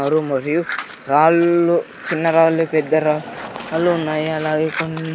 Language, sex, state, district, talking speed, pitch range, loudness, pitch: Telugu, male, Andhra Pradesh, Sri Satya Sai, 115 wpm, 155-165 Hz, -18 LUFS, 160 Hz